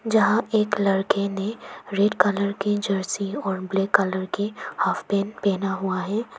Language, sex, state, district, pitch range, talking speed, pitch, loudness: Hindi, female, Arunachal Pradesh, Papum Pare, 195-205 Hz, 160 wpm, 200 Hz, -24 LUFS